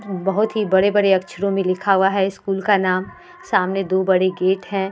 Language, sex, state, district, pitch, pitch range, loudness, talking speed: Hindi, female, Bihar, Vaishali, 195 Hz, 190-200 Hz, -19 LUFS, 195 wpm